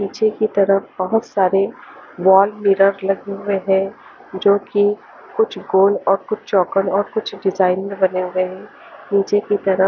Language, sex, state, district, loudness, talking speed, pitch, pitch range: Hindi, female, Haryana, Charkhi Dadri, -18 LUFS, 150 wpm, 195 Hz, 190-205 Hz